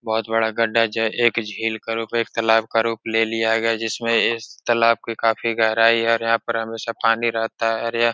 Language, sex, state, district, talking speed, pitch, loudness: Hindi, male, Uttar Pradesh, Etah, 230 wpm, 115 Hz, -20 LUFS